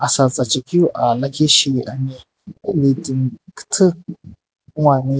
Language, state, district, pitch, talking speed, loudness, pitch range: Sumi, Nagaland, Dimapur, 135 Hz, 125 wpm, -17 LUFS, 130-155 Hz